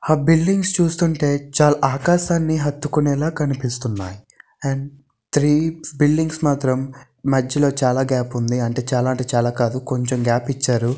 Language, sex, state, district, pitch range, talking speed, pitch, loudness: Telugu, male, Andhra Pradesh, Visakhapatnam, 125-150 Hz, 130 wpm, 140 Hz, -19 LUFS